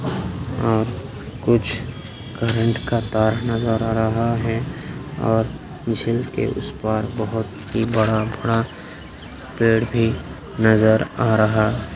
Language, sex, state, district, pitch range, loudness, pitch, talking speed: Hindi, male, Bihar, Saharsa, 110-115 Hz, -21 LUFS, 115 Hz, 110 wpm